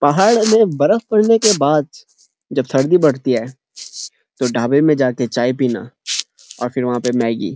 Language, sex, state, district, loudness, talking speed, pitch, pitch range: Hindi, male, Uttarakhand, Uttarkashi, -16 LUFS, 165 wpm, 135 Hz, 125-170 Hz